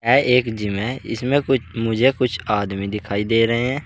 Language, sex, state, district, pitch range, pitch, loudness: Hindi, male, Uttar Pradesh, Saharanpur, 105-125 Hz, 115 Hz, -20 LUFS